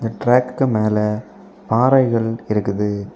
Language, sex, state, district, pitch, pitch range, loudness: Tamil, male, Tamil Nadu, Kanyakumari, 115 Hz, 105-130 Hz, -18 LUFS